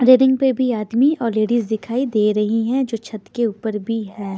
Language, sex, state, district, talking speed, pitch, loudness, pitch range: Hindi, female, Bihar, Patna, 220 wpm, 225 Hz, -19 LUFS, 215-255 Hz